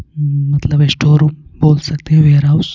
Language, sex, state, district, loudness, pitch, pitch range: Hindi, male, Punjab, Pathankot, -12 LUFS, 150 Hz, 145-155 Hz